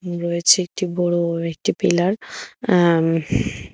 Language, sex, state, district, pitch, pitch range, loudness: Bengali, female, Tripura, West Tripura, 175 Hz, 165-180 Hz, -19 LUFS